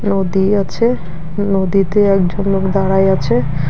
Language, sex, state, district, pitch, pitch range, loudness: Bengali, female, West Bengal, Alipurduar, 195 Hz, 175-200 Hz, -15 LUFS